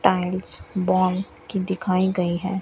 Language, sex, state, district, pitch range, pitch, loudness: Hindi, female, Rajasthan, Bikaner, 185-190 Hz, 185 Hz, -23 LUFS